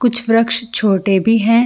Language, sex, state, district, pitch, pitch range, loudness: Hindi, female, Jharkhand, Sahebganj, 225 Hz, 215-230 Hz, -14 LUFS